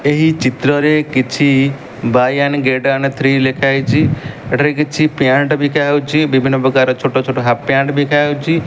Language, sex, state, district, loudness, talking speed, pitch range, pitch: Odia, male, Odisha, Malkangiri, -14 LUFS, 140 wpm, 130-145 Hz, 140 Hz